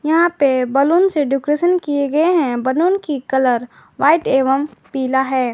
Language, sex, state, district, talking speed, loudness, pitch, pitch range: Hindi, female, Jharkhand, Garhwa, 160 wpm, -16 LUFS, 280 Hz, 265-320 Hz